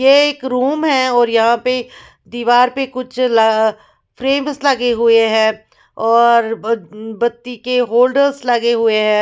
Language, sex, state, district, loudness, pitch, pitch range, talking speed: Hindi, female, Odisha, Khordha, -15 LUFS, 240 Hz, 225-255 Hz, 150 wpm